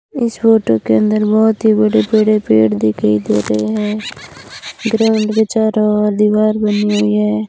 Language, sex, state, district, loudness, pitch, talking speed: Hindi, female, Rajasthan, Bikaner, -14 LUFS, 210 Hz, 160 wpm